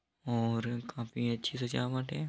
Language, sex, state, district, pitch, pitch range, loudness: Hindi, male, Bihar, East Champaran, 120 Hz, 115-125 Hz, -35 LUFS